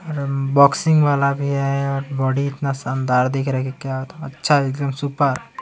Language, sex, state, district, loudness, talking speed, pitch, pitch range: Hindi, male, Chhattisgarh, Kabirdham, -19 LUFS, 180 wpm, 140 Hz, 135-140 Hz